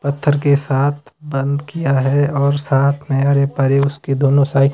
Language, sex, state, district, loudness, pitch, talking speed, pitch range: Hindi, male, Himachal Pradesh, Shimla, -16 LUFS, 140 Hz, 140 wpm, 135-145 Hz